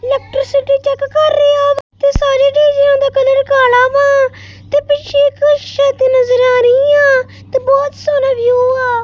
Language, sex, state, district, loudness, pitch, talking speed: Punjabi, female, Punjab, Kapurthala, -11 LUFS, 285 Hz, 175 wpm